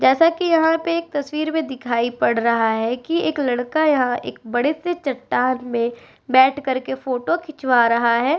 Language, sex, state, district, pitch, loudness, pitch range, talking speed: Hindi, female, Uttar Pradesh, Etah, 265 Hz, -20 LUFS, 240-315 Hz, 185 wpm